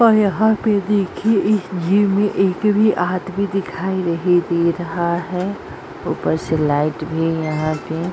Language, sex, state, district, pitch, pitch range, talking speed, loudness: Hindi, female, Uttar Pradesh, Etah, 185 Hz, 165-205 Hz, 160 wpm, -18 LUFS